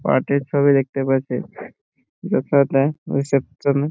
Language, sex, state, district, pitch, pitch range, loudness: Bengali, male, West Bengal, Purulia, 140 Hz, 135-140 Hz, -20 LUFS